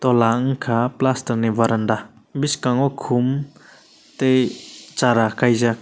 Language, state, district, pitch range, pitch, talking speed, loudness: Kokborok, Tripura, West Tripura, 115-130 Hz, 125 Hz, 105 wpm, -20 LUFS